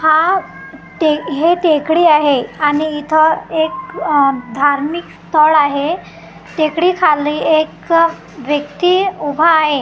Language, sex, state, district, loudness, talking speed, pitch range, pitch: Marathi, female, Maharashtra, Gondia, -14 LUFS, 110 wpm, 295-335 Hz, 310 Hz